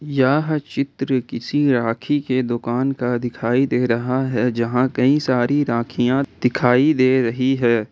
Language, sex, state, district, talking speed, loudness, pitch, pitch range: Hindi, male, Jharkhand, Ranchi, 145 wpm, -19 LUFS, 130 Hz, 120-135 Hz